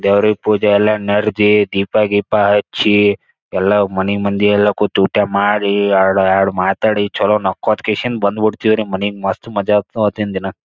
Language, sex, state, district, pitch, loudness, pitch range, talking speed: Kannada, male, Karnataka, Gulbarga, 105 Hz, -15 LUFS, 100-105 Hz, 145 wpm